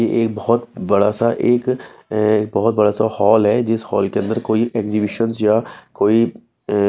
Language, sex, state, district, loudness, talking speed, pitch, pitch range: Hindi, male, Bihar, West Champaran, -17 LUFS, 185 wpm, 110 Hz, 105-115 Hz